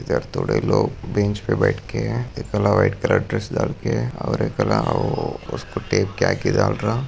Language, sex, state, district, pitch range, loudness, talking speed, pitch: Hindi, male, Maharashtra, Sindhudurg, 105-120 Hz, -21 LUFS, 125 wpm, 110 Hz